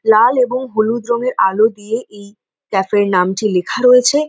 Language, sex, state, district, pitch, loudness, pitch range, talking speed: Bengali, female, West Bengal, North 24 Parganas, 220 Hz, -15 LUFS, 205-250 Hz, 180 wpm